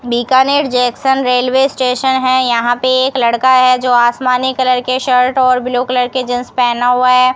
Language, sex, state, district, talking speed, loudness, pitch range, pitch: Hindi, female, Rajasthan, Bikaner, 185 wpm, -12 LUFS, 245-260 Hz, 255 Hz